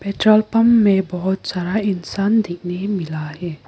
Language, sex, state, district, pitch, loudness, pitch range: Hindi, female, Arunachal Pradesh, Lower Dibang Valley, 190 Hz, -18 LUFS, 175-210 Hz